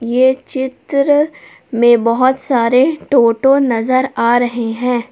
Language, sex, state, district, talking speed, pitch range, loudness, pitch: Hindi, female, Jharkhand, Palamu, 115 wpm, 235-265 Hz, -14 LUFS, 255 Hz